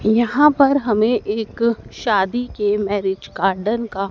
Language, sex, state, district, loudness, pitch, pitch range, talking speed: Hindi, female, Madhya Pradesh, Dhar, -18 LUFS, 215 Hz, 205-240 Hz, 130 wpm